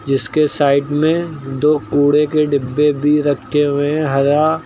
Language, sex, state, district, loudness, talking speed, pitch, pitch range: Hindi, male, Uttar Pradesh, Lucknow, -15 LUFS, 155 wpm, 145 Hz, 140-150 Hz